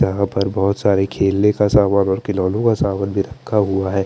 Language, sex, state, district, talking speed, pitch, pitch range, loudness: Hindi, male, Chandigarh, Chandigarh, 220 wpm, 100 Hz, 95-105 Hz, -17 LUFS